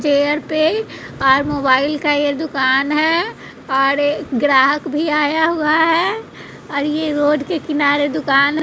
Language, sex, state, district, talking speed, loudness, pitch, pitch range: Hindi, female, Bihar, West Champaran, 155 wpm, -16 LUFS, 295 Hz, 285-310 Hz